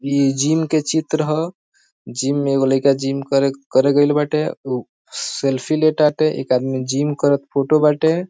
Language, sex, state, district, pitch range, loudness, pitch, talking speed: Bhojpuri, male, Bihar, East Champaran, 135-155 Hz, -18 LUFS, 145 Hz, 175 wpm